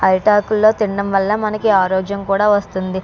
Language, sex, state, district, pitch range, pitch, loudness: Telugu, female, Andhra Pradesh, Krishna, 190-210 Hz, 200 Hz, -16 LUFS